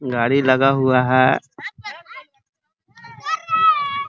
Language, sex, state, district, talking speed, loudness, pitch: Hindi, male, Bihar, Muzaffarpur, 75 wpm, -17 LUFS, 140 Hz